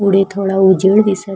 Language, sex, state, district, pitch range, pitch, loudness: Marathi, female, Maharashtra, Sindhudurg, 190-200 Hz, 195 Hz, -12 LUFS